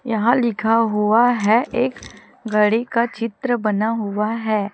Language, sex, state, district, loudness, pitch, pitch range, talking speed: Hindi, female, Chhattisgarh, Raipur, -19 LUFS, 225 Hz, 215-240 Hz, 140 wpm